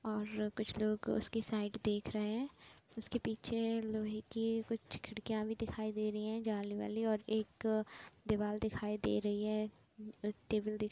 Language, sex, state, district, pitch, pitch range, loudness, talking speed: Hindi, female, Uttar Pradesh, Budaun, 215 Hz, 210-225 Hz, -39 LUFS, 175 wpm